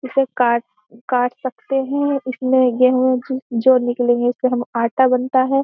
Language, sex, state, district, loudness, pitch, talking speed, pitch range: Hindi, female, Uttar Pradesh, Jyotiba Phule Nagar, -18 LUFS, 255 Hz, 150 wpm, 245-260 Hz